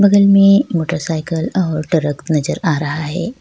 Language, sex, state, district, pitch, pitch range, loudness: Hindi, female, Bihar, Kishanganj, 165 Hz, 155-195 Hz, -15 LUFS